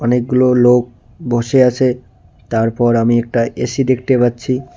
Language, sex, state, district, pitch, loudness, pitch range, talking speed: Bengali, male, West Bengal, Cooch Behar, 120 Hz, -14 LUFS, 115-130 Hz, 125 wpm